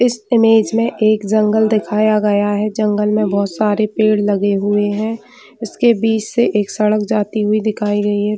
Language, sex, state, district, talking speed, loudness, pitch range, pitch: Hindi, female, Chhattisgarh, Bilaspur, 185 wpm, -15 LUFS, 205-220 Hz, 215 Hz